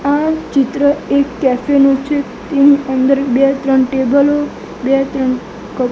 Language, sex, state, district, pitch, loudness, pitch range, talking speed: Gujarati, male, Gujarat, Gandhinagar, 275 Hz, -14 LUFS, 265-285 Hz, 150 wpm